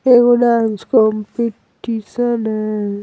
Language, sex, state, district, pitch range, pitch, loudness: Hindi, male, Bihar, Patna, 215-240 Hz, 230 Hz, -16 LUFS